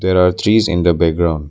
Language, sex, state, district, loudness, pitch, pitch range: English, male, Arunachal Pradesh, Lower Dibang Valley, -14 LUFS, 90 Hz, 85-95 Hz